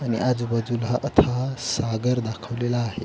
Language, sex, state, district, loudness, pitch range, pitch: Marathi, male, Maharashtra, Pune, -24 LUFS, 115-125 Hz, 120 Hz